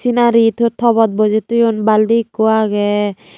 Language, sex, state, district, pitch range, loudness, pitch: Chakma, female, Tripura, Unakoti, 215-235 Hz, -14 LUFS, 225 Hz